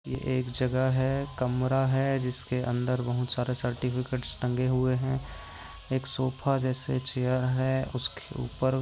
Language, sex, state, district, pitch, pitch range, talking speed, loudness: Hindi, male, Maharashtra, Sindhudurg, 130 Hz, 125-130 Hz, 145 wpm, -29 LUFS